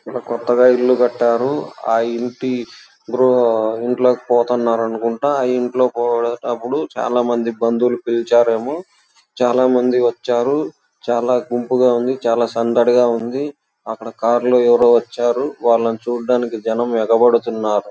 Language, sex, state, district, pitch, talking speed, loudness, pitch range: Telugu, male, Andhra Pradesh, Chittoor, 120 Hz, 115 wpm, -17 LUFS, 115-125 Hz